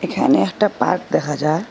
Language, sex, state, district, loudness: Bengali, female, Assam, Hailakandi, -18 LUFS